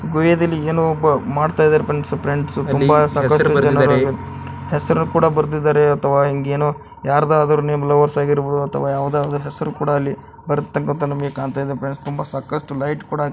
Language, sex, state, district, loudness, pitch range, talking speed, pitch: Kannada, male, Karnataka, Bijapur, -18 LUFS, 140-150 Hz, 145 wpm, 145 Hz